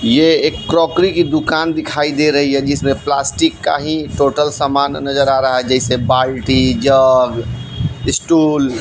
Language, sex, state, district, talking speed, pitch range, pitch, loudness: Hindi, female, Bihar, West Champaran, 165 wpm, 130-155 Hz, 140 Hz, -14 LUFS